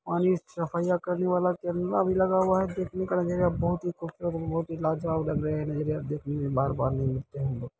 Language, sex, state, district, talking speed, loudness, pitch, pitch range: Hindi, male, Bihar, Saharsa, 140 wpm, -28 LUFS, 170 Hz, 150-180 Hz